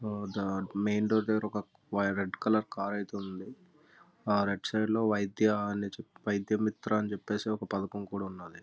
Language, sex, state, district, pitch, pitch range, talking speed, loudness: Telugu, male, Andhra Pradesh, Visakhapatnam, 105 Hz, 100-110 Hz, 140 wpm, -32 LUFS